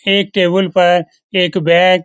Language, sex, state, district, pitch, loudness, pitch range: Hindi, male, Bihar, Lakhisarai, 180 Hz, -13 LUFS, 175-190 Hz